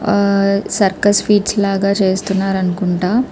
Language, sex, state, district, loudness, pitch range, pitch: Telugu, female, Andhra Pradesh, Krishna, -15 LUFS, 190-205 Hz, 200 Hz